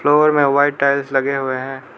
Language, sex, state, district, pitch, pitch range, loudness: Hindi, male, Arunachal Pradesh, Lower Dibang Valley, 140 Hz, 135-145 Hz, -16 LUFS